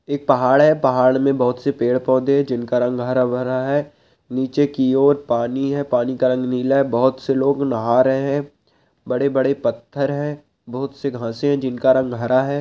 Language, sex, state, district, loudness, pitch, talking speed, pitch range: Hindi, male, Chhattisgarh, Balrampur, -19 LUFS, 130 Hz, 205 wpm, 125-140 Hz